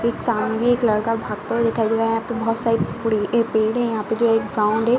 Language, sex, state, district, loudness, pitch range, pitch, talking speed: Hindi, female, Uttar Pradesh, Ghazipur, -20 LUFS, 220-235 Hz, 225 Hz, 265 wpm